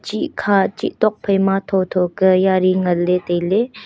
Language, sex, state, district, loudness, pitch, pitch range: Wancho, female, Arunachal Pradesh, Longding, -17 LUFS, 190 Hz, 180-195 Hz